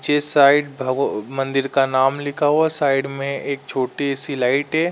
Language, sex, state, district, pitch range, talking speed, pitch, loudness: Hindi, male, Uttar Pradesh, Varanasi, 135-145 Hz, 185 wpm, 140 Hz, -18 LUFS